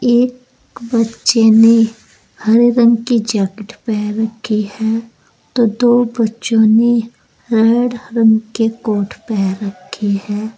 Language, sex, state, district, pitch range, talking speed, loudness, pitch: Hindi, female, Uttar Pradesh, Saharanpur, 215-235 Hz, 120 wpm, -14 LUFS, 225 Hz